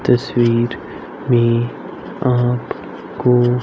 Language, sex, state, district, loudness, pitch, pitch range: Hindi, male, Haryana, Rohtak, -17 LUFS, 120 Hz, 120-125 Hz